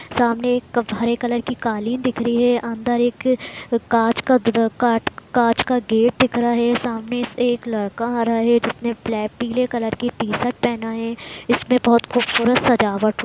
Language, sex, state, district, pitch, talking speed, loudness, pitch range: Hindi, female, Bihar, Muzaffarpur, 235 Hz, 170 wpm, -19 LUFS, 230-245 Hz